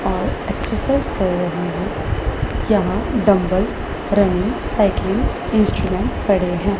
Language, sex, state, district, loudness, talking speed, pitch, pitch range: Hindi, female, Punjab, Pathankot, -19 LUFS, 105 wpm, 200 Hz, 185-205 Hz